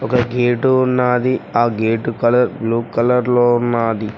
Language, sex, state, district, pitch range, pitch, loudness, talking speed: Telugu, male, Telangana, Mahabubabad, 115-125 Hz, 120 Hz, -16 LUFS, 145 wpm